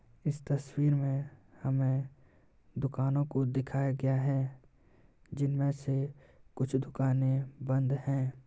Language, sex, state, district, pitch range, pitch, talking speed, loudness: Hindi, male, Bihar, Samastipur, 130-140 Hz, 135 Hz, 105 wpm, -32 LUFS